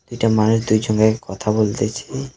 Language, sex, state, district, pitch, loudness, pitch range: Bengali, male, West Bengal, Alipurduar, 110 Hz, -18 LUFS, 110-115 Hz